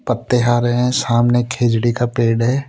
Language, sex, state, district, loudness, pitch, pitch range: Hindi, male, Rajasthan, Jaipur, -16 LUFS, 120 Hz, 120-125 Hz